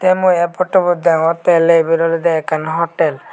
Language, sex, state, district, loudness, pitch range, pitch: Chakma, male, Tripura, Dhalai, -14 LUFS, 165-175 Hz, 170 Hz